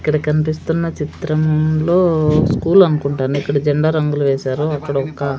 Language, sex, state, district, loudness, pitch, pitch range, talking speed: Telugu, female, Andhra Pradesh, Sri Satya Sai, -16 LUFS, 155 Hz, 145-155 Hz, 110 wpm